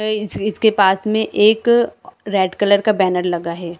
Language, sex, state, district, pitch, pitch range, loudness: Hindi, female, Chhattisgarh, Bilaspur, 210 Hz, 190-215 Hz, -16 LUFS